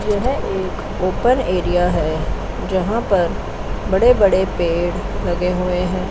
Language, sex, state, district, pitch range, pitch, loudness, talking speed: Hindi, female, Chandigarh, Chandigarh, 175-205 Hz, 185 Hz, -19 LUFS, 130 wpm